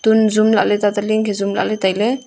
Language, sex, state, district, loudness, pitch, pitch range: Wancho, female, Arunachal Pradesh, Longding, -16 LUFS, 215 Hz, 205-220 Hz